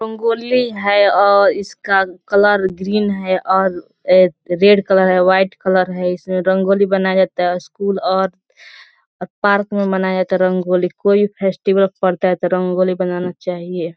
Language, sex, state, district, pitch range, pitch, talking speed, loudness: Hindi, female, Bihar, Gopalganj, 185-200 Hz, 190 Hz, 165 wpm, -15 LUFS